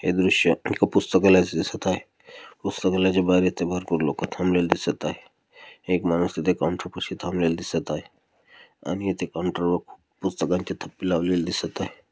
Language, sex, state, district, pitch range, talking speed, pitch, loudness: Marathi, male, Maharashtra, Dhule, 85-90 Hz, 155 wpm, 90 Hz, -24 LUFS